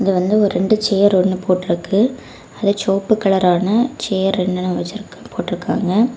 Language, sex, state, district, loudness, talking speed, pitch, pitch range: Tamil, female, Tamil Nadu, Kanyakumari, -17 LUFS, 145 wpm, 195 Hz, 185-215 Hz